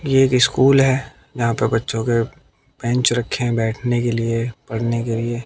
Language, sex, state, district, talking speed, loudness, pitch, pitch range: Hindi, male, Haryana, Jhajjar, 185 wpm, -19 LUFS, 120 Hz, 115-125 Hz